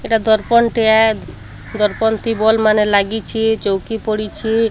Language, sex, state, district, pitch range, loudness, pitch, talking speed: Odia, female, Odisha, Sambalpur, 215-225 Hz, -15 LUFS, 220 Hz, 125 wpm